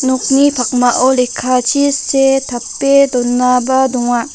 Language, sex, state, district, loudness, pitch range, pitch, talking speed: Garo, female, Meghalaya, North Garo Hills, -12 LUFS, 250-270 Hz, 260 Hz, 95 wpm